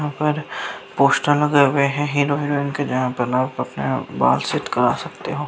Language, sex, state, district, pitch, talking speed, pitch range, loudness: Hindi, male, Bihar, Saharsa, 145 Hz, 185 wpm, 135-145 Hz, -20 LUFS